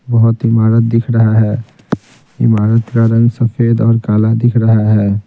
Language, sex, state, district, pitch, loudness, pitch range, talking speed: Hindi, male, Bihar, Patna, 115 Hz, -12 LUFS, 110-115 Hz, 160 wpm